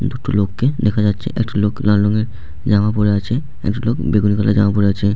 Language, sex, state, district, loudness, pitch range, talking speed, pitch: Bengali, male, West Bengal, Jalpaiguri, -17 LUFS, 100-115 Hz, 210 wpm, 105 Hz